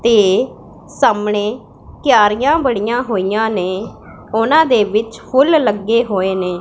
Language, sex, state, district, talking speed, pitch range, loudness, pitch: Punjabi, female, Punjab, Pathankot, 120 wpm, 205-245 Hz, -15 LUFS, 220 Hz